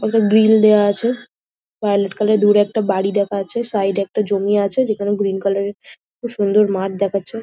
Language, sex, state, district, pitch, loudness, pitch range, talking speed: Bengali, female, West Bengal, Jhargram, 205 Hz, -17 LUFS, 200-215 Hz, 195 wpm